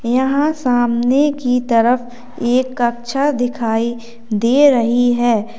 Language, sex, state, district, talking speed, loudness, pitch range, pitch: Hindi, female, Uttar Pradesh, Lalitpur, 105 wpm, -16 LUFS, 235-255 Hz, 245 Hz